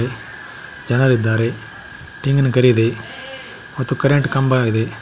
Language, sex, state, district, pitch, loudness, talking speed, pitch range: Kannada, male, Karnataka, Koppal, 125 Hz, -17 LUFS, 95 wpm, 115-135 Hz